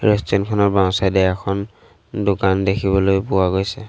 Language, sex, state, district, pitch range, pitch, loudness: Assamese, male, Assam, Sonitpur, 95-100 Hz, 95 Hz, -18 LUFS